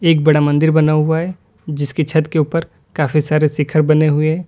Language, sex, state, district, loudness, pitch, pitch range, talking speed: Hindi, male, Uttar Pradesh, Lalitpur, -15 LUFS, 155 Hz, 150-160 Hz, 215 wpm